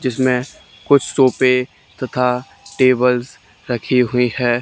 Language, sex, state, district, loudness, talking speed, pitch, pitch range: Hindi, male, Haryana, Charkhi Dadri, -17 LUFS, 105 wpm, 125 Hz, 125-130 Hz